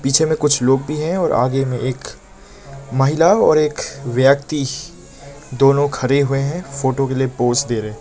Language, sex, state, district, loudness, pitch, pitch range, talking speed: Hindi, male, Nagaland, Kohima, -17 LUFS, 135 Hz, 130-145 Hz, 180 wpm